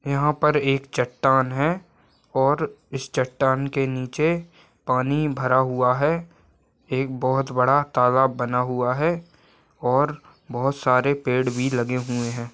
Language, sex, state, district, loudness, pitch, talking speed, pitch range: Hindi, male, Chhattisgarh, Raigarh, -22 LUFS, 135 Hz, 140 wpm, 125-145 Hz